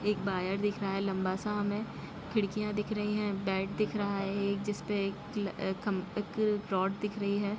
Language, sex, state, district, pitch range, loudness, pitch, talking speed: Hindi, female, Bihar, Samastipur, 195-210 Hz, -33 LUFS, 205 Hz, 215 wpm